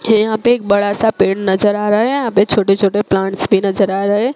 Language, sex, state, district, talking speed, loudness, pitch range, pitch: Hindi, female, Gujarat, Gandhinagar, 275 wpm, -13 LUFS, 195-220 Hz, 205 Hz